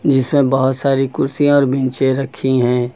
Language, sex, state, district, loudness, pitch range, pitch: Hindi, male, Uttar Pradesh, Lucknow, -15 LUFS, 130-140 Hz, 135 Hz